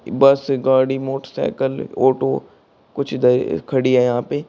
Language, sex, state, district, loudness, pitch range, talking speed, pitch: Hindi, male, Uttar Pradesh, Shamli, -18 LUFS, 125-135 Hz, 135 wpm, 130 Hz